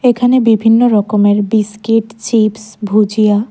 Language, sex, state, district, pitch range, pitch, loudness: Bengali, female, Tripura, West Tripura, 210-225 Hz, 215 Hz, -12 LUFS